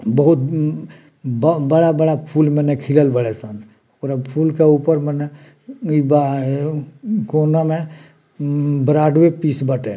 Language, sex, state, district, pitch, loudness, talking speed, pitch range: Bhojpuri, male, Bihar, Muzaffarpur, 150 Hz, -17 LUFS, 130 wpm, 140-160 Hz